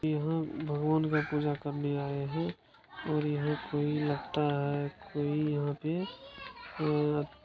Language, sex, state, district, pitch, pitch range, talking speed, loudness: Hindi, male, Bihar, Araria, 150 Hz, 145-155 Hz, 120 wpm, -33 LUFS